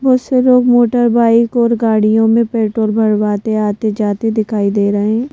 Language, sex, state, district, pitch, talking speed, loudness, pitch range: Hindi, female, Madhya Pradesh, Bhopal, 225 Hz, 180 wpm, -13 LUFS, 215-235 Hz